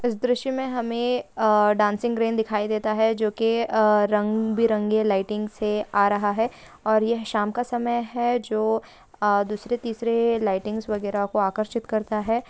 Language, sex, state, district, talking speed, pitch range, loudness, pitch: Hindi, female, Bihar, Samastipur, 175 wpm, 210-230 Hz, -23 LUFS, 220 Hz